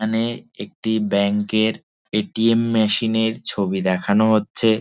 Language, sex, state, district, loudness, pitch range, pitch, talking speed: Bengali, male, West Bengal, Dakshin Dinajpur, -20 LUFS, 105-110 Hz, 110 Hz, 150 wpm